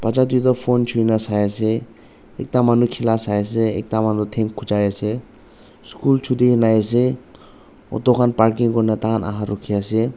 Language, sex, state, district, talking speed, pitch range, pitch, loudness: Nagamese, male, Nagaland, Dimapur, 170 wpm, 105-120 Hz, 115 Hz, -19 LUFS